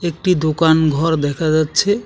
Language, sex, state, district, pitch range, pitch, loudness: Bengali, male, West Bengal, Alipurduar, 155-170 Hz, 160 Hz, -16 LUFS